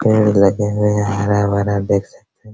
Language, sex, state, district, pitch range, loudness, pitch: Hindi, male, Bihar, Araria, 100-105 Hz, -16 LUFS, 105 Hz